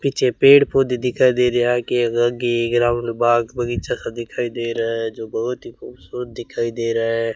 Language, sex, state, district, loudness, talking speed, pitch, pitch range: Hindi, male, Rajasthan, Bikaner, -19 LUFS, 195 wpm, 120 Hz, 115-125 Hz